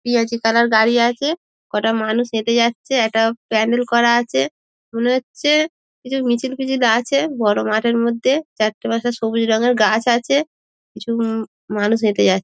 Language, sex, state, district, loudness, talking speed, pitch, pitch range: Bengali, female, West Bengal, Dakshin Dinajpur, -18 LUFS, 155 wpm, 235 Hz, 225-250 Hz